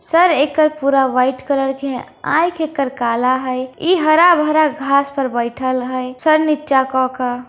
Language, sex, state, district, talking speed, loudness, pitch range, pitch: Hindi, female, Bihar, Darbhanga, 170 wpm, -16 LUFS, 255-310 Hz, 275 Hz